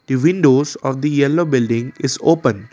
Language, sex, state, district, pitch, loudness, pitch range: English, male, Assam, Kamrup Metropolitan, 135 Hz, -16 LUFS, 130-150 Hz